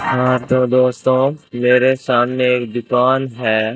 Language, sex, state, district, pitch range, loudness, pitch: Hindi, male, Rajasthan, Bikaner, 120-130 Hz, -16 LUFS, 125 Hz